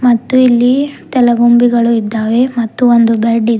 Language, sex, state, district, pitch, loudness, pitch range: Kannada, female, Karnataka, Bidar, 240 Hz, -11 LUFS, 230-250 Hz